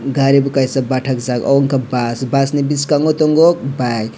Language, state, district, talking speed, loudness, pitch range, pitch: Kokborok, Tripura, West Tripura, 170 wpm, -15 LUFS, 130-140 Hz, 135 Hz